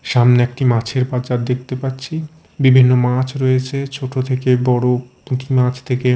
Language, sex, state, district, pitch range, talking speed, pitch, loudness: Bengali, male, Odisha, Khordha, 125-130 Hz, 135 wpm, 130 Hz, -17 LUFS